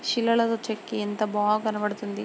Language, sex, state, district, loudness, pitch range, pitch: Telugu, female, Andhra Pradesh, Srikakulam, -26 LUFS, 210-230 Hz, 215 Hz